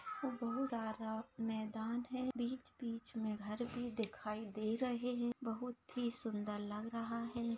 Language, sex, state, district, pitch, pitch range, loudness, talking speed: Hindi, female, Maharashtra, Aurangabad, 230 Hz, 220-245 Hz, -42 LUFS, 160 wpm